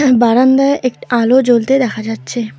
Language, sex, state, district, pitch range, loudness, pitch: Bengali, female, West Bengal, Alipurduar, 235-260 Hz, -13 LUFS, 245 Hz